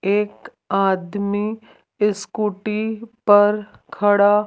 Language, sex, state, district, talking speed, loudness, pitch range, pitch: Hindi, female, Rajasthan, Jaipur, 65 wpm, -20 LUFS, 205-215 Hz, 205 Hz